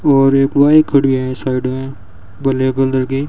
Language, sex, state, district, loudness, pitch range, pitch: Hindi, male, Rajasthan, Bikaner, -14 LUFS, 130-135 Hz, 135 Hz